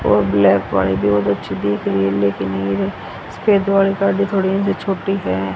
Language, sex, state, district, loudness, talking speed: Hindi, female, Haryana, Rohtak, -17 LUFS, 130 wpm